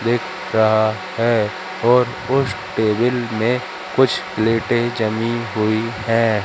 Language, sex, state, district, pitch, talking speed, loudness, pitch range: Hindi, male, Madhya Pradesh, Katni, 115 Hz, 110 wpm, -19 LUFS, 110-120 Hz